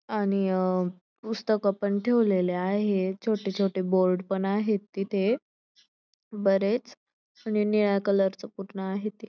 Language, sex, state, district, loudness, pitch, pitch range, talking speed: Marathi, female, Maharashtra, Dhule, -27 LUFS, 200 Hz, 190-210 Hz, 125 wpm